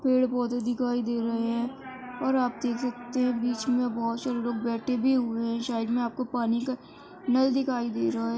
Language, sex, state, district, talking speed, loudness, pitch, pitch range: Hindi, female, Uttar Pradesh, Varanasi, 215 wpm, -28 LUFS, 245 Hz, 235-255 Hz